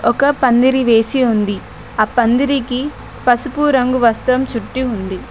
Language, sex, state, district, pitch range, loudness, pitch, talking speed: Telugu, female, Telangana, Mahabubabad, 230-265 Hz, -15 LUFS, 250 Hz, 125 wpm